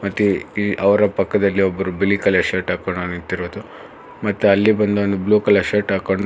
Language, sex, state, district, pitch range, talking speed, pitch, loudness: Kannada, male, Karnataka, Bangalore, 95-105 Hz, 165 wpm, 100 Hz, -18 LUFS